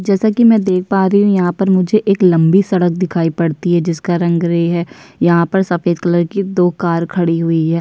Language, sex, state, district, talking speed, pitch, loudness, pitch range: Hindi, female, Uttar Pradesh, Jyotiba Phule Nagar, 230 wpm, 175 Hz, -14 LUFS, 170-195 Hz